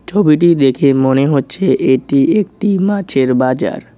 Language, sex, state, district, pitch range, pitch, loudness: Bengali, male, West Bengal, Alipurduar, 135-190 Hz, 140 Hz, -13 LUFS